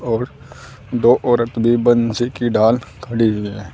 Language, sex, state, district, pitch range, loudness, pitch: Hindi, male, Uttar Pradesh, Saharanpur, 110-120 Hz, -17 LUFS, 120 Hz